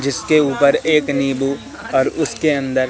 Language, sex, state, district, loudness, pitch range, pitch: Hindi, male, Madhya Pradesh, Katni, -17 LUFS, 135-150 Hz, 140 Hz